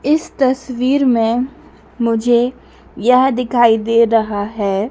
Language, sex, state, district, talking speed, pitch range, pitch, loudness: Hindi, female, Madhya Pradesh, Dhar, 110 wpm, 225-260 Hz, 240 Hz, -15 LUFS